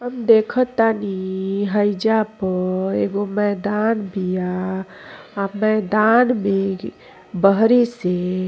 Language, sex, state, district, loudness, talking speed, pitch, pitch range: Bhojpuri, female, Uttar Pradesh, Ghazipur, -19 LUFS, 85 wpm, 205 Hz, 190-220 Hz